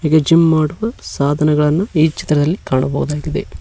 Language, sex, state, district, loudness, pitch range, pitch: Kannada, male, Karnataka, Koppal, -16 LUFS, 150-165 Hz, 155 Hz